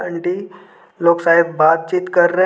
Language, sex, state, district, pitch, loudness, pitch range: Hindi, male, Jharkhand, Deoghar, 175 Hz, -15 LUFS, 170-180 Hz